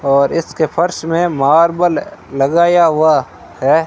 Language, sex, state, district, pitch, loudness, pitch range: Hindi, male, Rajasthan, Bikaner, 165 Hz, -14 LUFS, 140-170 Hz